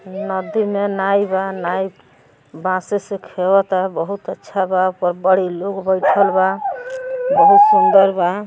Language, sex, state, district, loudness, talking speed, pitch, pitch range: Hindi, female, Uttar Pradesh, Gorakhpur, -17 LUFS, 135 wpm, 195 Hz, 185-200 Hz